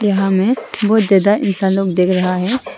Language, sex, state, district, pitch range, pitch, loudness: Hindi, female, Arunachal Pradesh, Longding, 190-210 Hz, 195 Hz, -15 LUFS